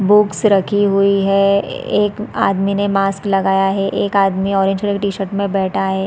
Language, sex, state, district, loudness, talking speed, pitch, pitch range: Hindi, female, Chhattisgarh, Raigarh, -16 LUFS, 185 wpm, 195 Hz, 195-200 Hz